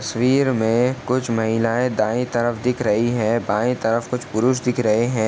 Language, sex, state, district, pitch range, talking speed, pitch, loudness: Hindi, male, Uttar Pradesh, Etah, 115-125 Hz, 180 wpm, 120 Hz, -20 LUFS